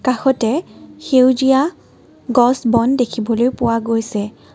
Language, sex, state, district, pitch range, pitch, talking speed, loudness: Assamese, female, Assam, Kamrup Metropolitan, 230-265 Hz, 245 Hz, 80 wpm, -16 LUFS